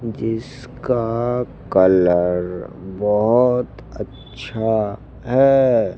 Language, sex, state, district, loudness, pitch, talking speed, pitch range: Hindi, male, Madhya Pradesh, Dhar, -18 LUFS, 115 Hz, 50 wpm, 105-125 Hz